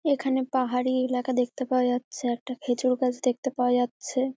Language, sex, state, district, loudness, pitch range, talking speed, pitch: Bengali, female, West Bengal, Dakshin Dinajpur, -26 LUFS, 250-260 Hz, 165 wpm, 255 Hz